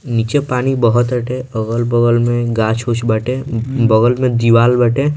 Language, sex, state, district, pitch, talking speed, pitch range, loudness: Bhojpuri, male, Bihar, Muzaffarpur, 120 Hz, 140 wpm, 115-125 Hz, -15 LUFS